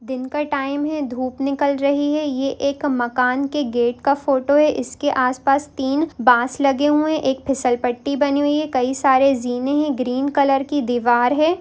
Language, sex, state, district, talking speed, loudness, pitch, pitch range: Hindi, female, Bihar, Sitamarhi, 195 wpm, -19 LUFS, 275 Hz, 255-290 Hz